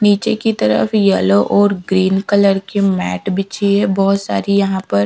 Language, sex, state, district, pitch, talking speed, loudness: Hindi, female, Bihar, Patna, 195 Hz, 200 wpm, -15 LUFS